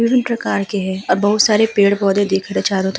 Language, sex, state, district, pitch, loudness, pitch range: Hindi, female, Uttar Pradesh, Hamirpur, 200 Hz, -16 LUFS, 195-215 Hz